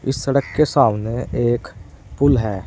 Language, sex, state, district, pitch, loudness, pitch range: Hindi, male, Uttar Pradesh, Saharanpur, 120 Hz, -19 LUFS, 105-135 Hz